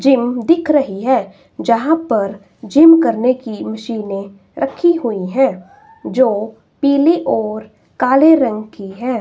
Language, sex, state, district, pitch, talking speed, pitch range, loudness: Hindi, female, Himachal Pradesh, Shimla, 245 Hz, 130 wpm, 215-285 Hz, -15 LUFS